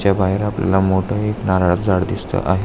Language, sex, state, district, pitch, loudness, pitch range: Marathi, male, Maharashtra, Aurangabad, 95 Hz, -18 LUFS, 95-100 Hz